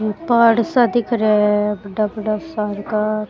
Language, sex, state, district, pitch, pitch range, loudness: Rajasthani, female, Rajasthan, Churu, 215 Hz, 210-230 Hz, -17 LUFS